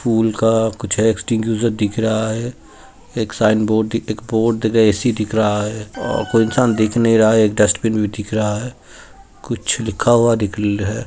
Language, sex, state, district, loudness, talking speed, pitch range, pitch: Hindi, male, Uttar Pradesh, Jalaun, -17 LUFS, 200 wpm, 105-115 Hz, 110 Hz